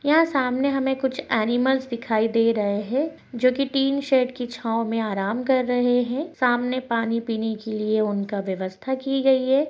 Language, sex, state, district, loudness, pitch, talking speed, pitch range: Hindi, female, Maharashtra, Dhule, -23 LUFS, 245 Hz, 180 wpm, 225-265 Hz